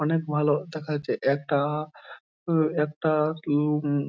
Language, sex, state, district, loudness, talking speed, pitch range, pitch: Bengali, male, West Bengal, Jhargram, -26 LUFS, 130 wpm, 145-155 Hz, 150 Hz